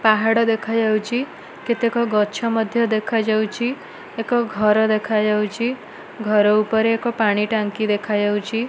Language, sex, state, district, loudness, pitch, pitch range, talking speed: Odia, female, Odisha, Malkangiri, -20 LUFS, 220 Hz, 210-230 Hz, 95 wpm